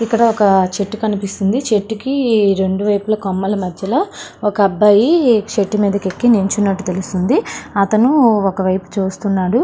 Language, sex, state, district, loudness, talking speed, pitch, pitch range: Telugu, female, Andhra Pradesh, Srikakulam, -15 LUFS, 120 wpm, 205 Hz, 195-220 Hz